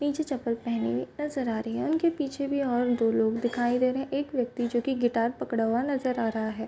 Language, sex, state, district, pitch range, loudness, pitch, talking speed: Hindi, female, Bihar, Bhagalpur, 230-275 Hz, -28 LUFS, 245 Hz, 260 wpm